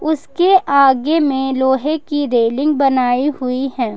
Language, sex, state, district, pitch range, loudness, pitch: Hindi, female, Jharkhand, Ranchi, 260-300 Hz, -15 LUFS, 275 Hz